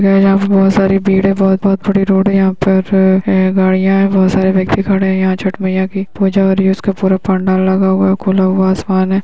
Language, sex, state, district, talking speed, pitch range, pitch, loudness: Hindi, female, Uttar Pradesh, Etah, 245 wpm, 190-195 Hz, 190 Hz, -12 LUFS